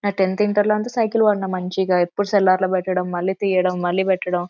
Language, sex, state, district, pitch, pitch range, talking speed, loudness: Telugu, female, Andhra Pradesh, Anantapur, 190 Hz, 180-205 Hz, 215 wpm, -20 LUFS